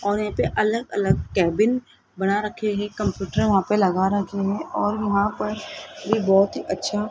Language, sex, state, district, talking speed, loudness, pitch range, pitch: Hindi, female, Rajasthan, Jaipur, 195 wpm, -22 LUFS, 195-215 Hz, 205 Hz